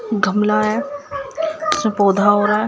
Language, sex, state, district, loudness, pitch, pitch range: Hindi, female, Bihar, Saharsa, -17 LUFS, 215 Hz, 210-290 Hz